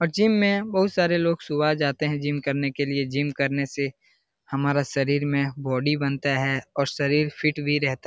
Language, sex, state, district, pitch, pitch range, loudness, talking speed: Hindi, male, Bihar, Jahanabad, 145 Hz, 140-150 Hz, -24 LUFS, 210 wpm